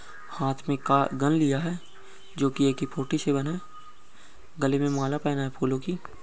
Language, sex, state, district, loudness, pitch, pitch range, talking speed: Hindi, male, Uttar Pradesh, Ghazipur, -27 LUFS, 140 Hz, 135-160 Hz, 185 wpm